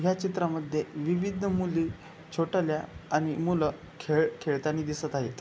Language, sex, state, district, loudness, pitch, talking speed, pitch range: Marathi, male, Maharashtra, Chandrapur, -30 LUFS, 160 Hz, 120 wpm, 155-175 Hz